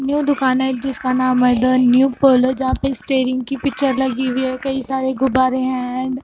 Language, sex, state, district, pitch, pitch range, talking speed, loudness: Hindi, female, Punjab, Fazilka, 260 Hz, 255-270 Hz, 220 wpm, -17 LUFS